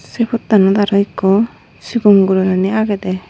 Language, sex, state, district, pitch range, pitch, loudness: Chakma, female, Tripura, Unakoti, 190-215 Hz, 200 Hz, -14 LUFS